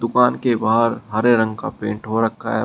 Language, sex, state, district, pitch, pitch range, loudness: Hindi, male, Uttar Pradesh, Shamli, 115 Hz, 110-120 Hz, -19 LUFS